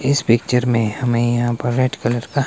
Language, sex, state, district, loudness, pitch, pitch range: Hindi, male, Himachal Pradesh, Shimla, -18 LUFS, 120 Hz, 120-125 Hz